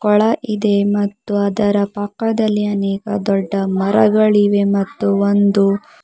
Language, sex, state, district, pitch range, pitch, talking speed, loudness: Kannada, female, Karnataka, Bidar, 200-210 Hz, 205 Hz, 100 wpm, -16 LUFS